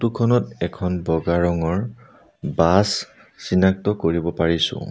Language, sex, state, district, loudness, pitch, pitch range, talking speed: Assamese, male, Assam, Sonitpur, -21 LUFS, 90 Hz, 85-105 Hz, 95 wpm